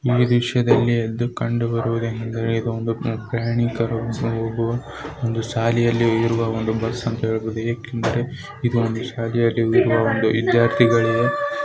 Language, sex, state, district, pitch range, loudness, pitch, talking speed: Kannada, male, Karnataka, Mysore, 115-120 Hz, -21 LUFS, 115 Hz, 120 wpm